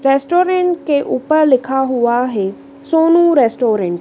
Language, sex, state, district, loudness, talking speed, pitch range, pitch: Hindi, female, Madhya Pradesh, Dhar, -14 LUFS, 135 wpm, 245-320 Hz, 275 Hz